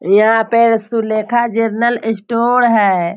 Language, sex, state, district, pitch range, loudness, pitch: Hindi, female, Bihar, Sitamarhi, 215-235 Hz, -14 LUFS, 225 Hz